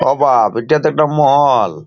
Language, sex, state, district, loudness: Bengali, male, West Bengal, Purulia, -12 LUFS